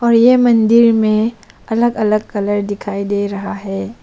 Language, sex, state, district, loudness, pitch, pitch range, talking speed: Hindi, female, Arunachal Pradesh, Papum Pare, -15 LUFS, 215 Hz, 205-230 Hz, 165 wpm